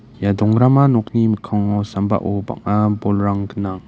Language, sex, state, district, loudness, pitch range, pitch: Garo, male, Meghalaya, West Garo Hills, -17 LUFS, 100-110 Hz, 105 Hz